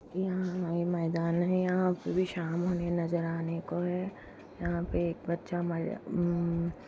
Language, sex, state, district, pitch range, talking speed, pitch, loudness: Hindi, female, Chhattisgarh, Bastar, 170-180 Hz, 165 wpm, 175 Hz, -32 LUFS